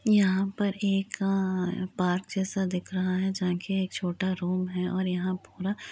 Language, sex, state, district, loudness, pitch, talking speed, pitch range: Hindi, female, Bihar, Muzaffarpur, -29 LUFS, 185 Hz, 195 wpm, 185-195 Hz